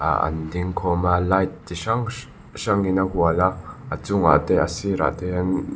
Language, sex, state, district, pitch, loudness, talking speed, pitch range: Mizo, male, Mizoram, Aizawl, 90 Hz, -22 LUFS, 210 wpm, 85-95 Hz